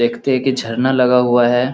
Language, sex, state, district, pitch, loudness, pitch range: Hindi, male, Bihar, Lakhisarai, 125 Hz, -15 LUFS, 120-130 Hz